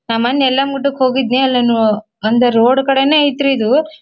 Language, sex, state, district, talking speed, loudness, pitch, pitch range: Kannada, female, Karnataka, Dharwad, 135 wpm, -13 LUFS, 260 Hz, 235-275 Hz